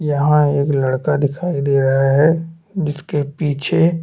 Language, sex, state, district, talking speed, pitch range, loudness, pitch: Hindi, male, Chhattisgarh, Bastar, 150 wpm, 140-165 Hz, -17 LUFS, 145 Hz